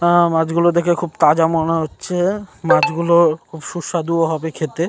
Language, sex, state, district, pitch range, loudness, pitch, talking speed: Bengali, male, West Bengal, North 24 Parganas, 160-175 Hz, -17 LUFS, 170 Hz, 135 wpm